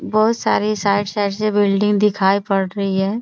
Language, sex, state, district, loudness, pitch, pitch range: Hindi, female, Bihar, Jamui, -18 LUFS, 205 Hz, 195-210 Hz